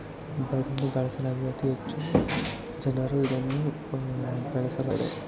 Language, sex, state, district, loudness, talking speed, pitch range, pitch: Kannada, male, Karnataka, Chamarajanagar, -30 LUFS, 80 wpm, 130-140 Hz, 135 Hz